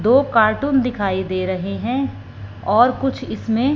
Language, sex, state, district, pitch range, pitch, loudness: Hindi, female, Punjab, Fazilka, 190-260 Hz, 220 Hz, -19 LUFS